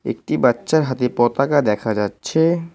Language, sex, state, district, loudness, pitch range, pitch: Bengali, male, West Bengal, Cooch Behar, -18 LUFS, 115-160 Hz, 130 Hz